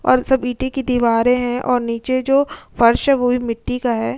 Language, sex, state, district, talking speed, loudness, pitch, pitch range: Hindi, female, Uttar Pradesh, Jyotiba Phule Nagar, 245 wpm, -18 LUFS, 250 Hz, 235-260 Hz